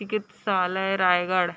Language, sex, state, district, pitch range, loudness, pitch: Chhattisgarhi, female, Chhattisgarh, Raigarh, 180-205 Hz, -24 LUFS, 190 Hz